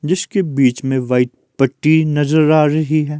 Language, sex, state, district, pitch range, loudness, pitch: Hindi, male, Himachal Pradesh, Shimla, 135-155 Hz, -15 LUFS, 150 Hz